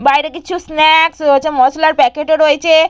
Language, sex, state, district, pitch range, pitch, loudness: Bengali, female, West Bengal, Purulia, 295-320 Hz, 310 Hz, -11 LUFS